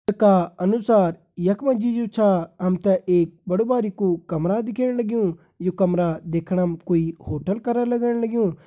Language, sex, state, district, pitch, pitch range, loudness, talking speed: Garhwali, male, Uttarakhand, Uttarkashi, 190 Hz, 175-230 Hz, -22 LUFS, 145 wpm